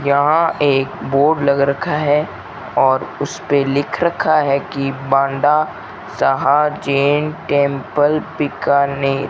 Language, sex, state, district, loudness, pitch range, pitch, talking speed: Hindi, male, Rajasthan, Bikaner, -16 LUFS, 140-150 Hz, 140 Hz, 115 wpm